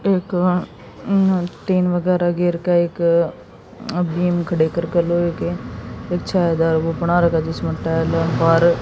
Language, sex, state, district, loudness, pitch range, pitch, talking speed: Hindi, female, Haryana, Jhajjar, -19 LUFS, 165-180 Hz, 175 Hz, 145 wpm